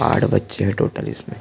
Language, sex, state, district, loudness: Hindi, male, Chhattisgarh, Jashpur, -21 LUFS